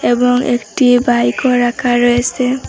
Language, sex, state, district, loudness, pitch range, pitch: Bengali, female, Assam, Hailakandi, -13 LUFS, 240-250 Hz, 245 Hz